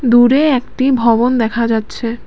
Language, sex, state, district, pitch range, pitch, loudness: Bengali, female, Assam, Kamrup Metropolitan, 230-255 Hz, 240 Hz, -13 LUFS